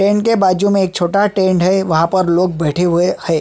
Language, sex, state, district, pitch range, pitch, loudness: Hindi, male, Chhattisgarh, Sukma, 175-195 Hz, 185 Hz, -14 LUFS